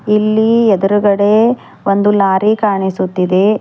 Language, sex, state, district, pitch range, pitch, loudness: Kannada, female, Karnataka, Bidar, 195-215 Hz, 205 Hz, -12 LUFS